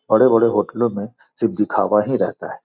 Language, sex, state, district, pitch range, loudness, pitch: Hindi, male, Bihar, Gopalganj, 105-120 Hz, -18 LUFS, 115 Hz